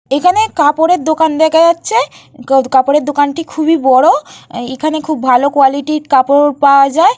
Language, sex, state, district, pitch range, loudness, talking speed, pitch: Bengali, female, West Bengal, Purulia, 275-320 Hz, -11 LUFS, 135 wpm, 295 Hz